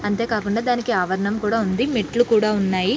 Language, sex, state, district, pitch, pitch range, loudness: Telugu, female, Andhra Pradesh, Srikakulam, 220 Hz, 200-235 Hz, -20 LUFS